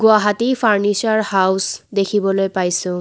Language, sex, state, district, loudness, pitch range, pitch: Assamese, female, Assam, Kamrup Metropolitan, -17 LUFS, 190-215 Hz, 205 Hz